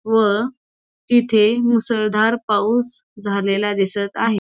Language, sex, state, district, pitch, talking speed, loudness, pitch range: Marathi, female, Maharashtra, Pune, 220 Hz, 95 wpm, -18 LUFS, 205-240 Hz